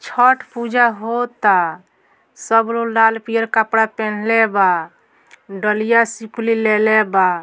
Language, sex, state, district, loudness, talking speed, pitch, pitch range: Bhojpuri, female, Bihar, Muzaffarpur, -16 LUFS, 120 wpm, 225 Hz, 215-230 Hz